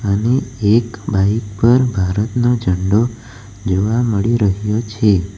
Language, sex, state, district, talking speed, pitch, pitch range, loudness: Gujarati, male, Gujarat, Valsad, 110 wpm, 105 Hz, 100-115 Hz, -16 LUFS